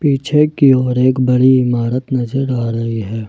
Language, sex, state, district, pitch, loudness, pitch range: Hindi, male, Jharkhand, Ranchi, 130 Hz, -14 LUFS, 120-135 Hz